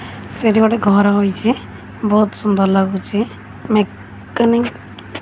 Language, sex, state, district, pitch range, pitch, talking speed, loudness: Odia, female, Odisha, Khordha, 190-220 Hz, 205 Hz, 105 wpm, -16 LUFS